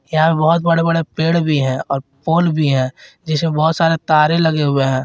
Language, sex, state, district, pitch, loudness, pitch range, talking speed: Hindi, male, Jharkhand, Garhwa, 155 Hz, -16 LUFS, 140-165 Hz, 225 wpm